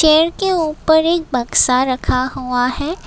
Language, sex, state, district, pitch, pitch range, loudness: Hindi, female, Assam, Kamrup Metropolitan, 305 Hz, 255-325 Hz, -16 LUFS